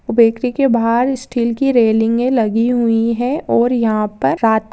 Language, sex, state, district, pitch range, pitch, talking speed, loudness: Hindi, female, Rajasthan, Nagaur, 225-250 Hz, 235 Hz, 190 wpm, -15 LUFS